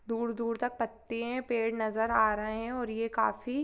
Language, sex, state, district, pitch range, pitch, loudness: Hindi, female, Jharkhand, Sahebganj, 225-240 Hz, 230 Hz, -32 LUFS